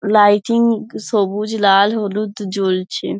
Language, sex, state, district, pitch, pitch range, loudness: Bengali, female, West Bengal, Dakshin Dinajpur, 205 Hz, 200-215 Hz, -16 LUFS